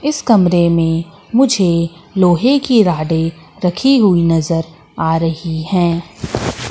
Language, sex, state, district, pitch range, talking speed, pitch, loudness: Hindi, female, Madhya Pradesh, Katni, 165-200 Hz, 115 wpm, 170 Hz, -14 LUFS